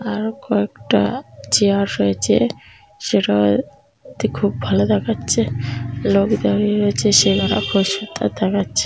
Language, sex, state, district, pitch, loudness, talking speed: Bengali, female, West Bengal, North 24 Parganas, 105 Hz, -18 LUFS, 95 wpm